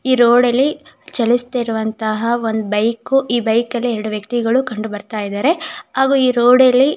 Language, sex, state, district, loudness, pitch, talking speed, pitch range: Kannada, female, Karnataka, Shimoga, -16 LUFS, 240 Hz, 165 wpm, 220-260 Hz